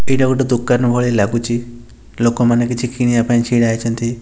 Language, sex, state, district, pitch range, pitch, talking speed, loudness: Odia, male, Odisha, Nuapada, 120-125 Hz, 120 Hz, 170 wpm, -16 LUFS